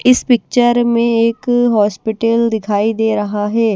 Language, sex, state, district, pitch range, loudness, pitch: Hindi, female, Haryana, Charkhi Dadri, 215-240 Hz, -14 LUFS, 230 Hz